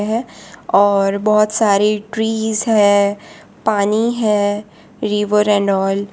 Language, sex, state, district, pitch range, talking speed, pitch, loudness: Hindi, female, Gujarat, Valsad, 205-220 Hz, 105 wpm, 210 Hz, -16 LUFS